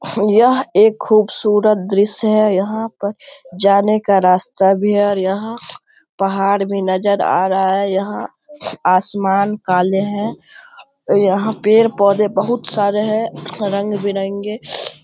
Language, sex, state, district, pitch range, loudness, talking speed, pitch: Hindi, male, Bihar, Samastipur, 195-215 Hz, -16 LUFS, 125 wpm, 205 Hz